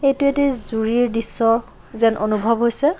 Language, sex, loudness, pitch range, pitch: Assamese, female, -17 LUFS, 225-275 Hz, 230 Hz